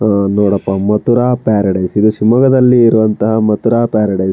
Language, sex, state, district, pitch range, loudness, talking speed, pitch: Kannada, male, Karnataka, Shimoga, 100-115 Hz, -12 LUFS, 125 wpm, 110 Hz